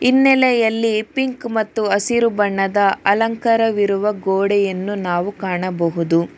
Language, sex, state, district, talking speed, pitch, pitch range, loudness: Kannada, female, Karnataka, Bangalore, 95 wpm, 205 Hz, 195-230 Hz, -17 LUFS